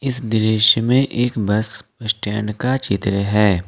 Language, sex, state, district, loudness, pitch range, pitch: Hindi, male, Jharkhand, Ranchi, -18 LUFS, 105-120 Hz, 110 Hz